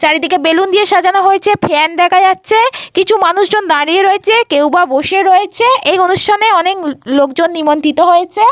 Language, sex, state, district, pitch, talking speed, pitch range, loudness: Bengali, female, Jharkhand, Jamtara, 370 Hz, 160 wpm, 325-400 Hz, -10 LUFS